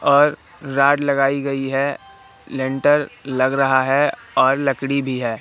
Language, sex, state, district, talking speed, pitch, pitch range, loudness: Hindi, male, Madhya Pradesh, Katni, 145 wpm, 135 Hz, 130-140 Hz, -18 LUFS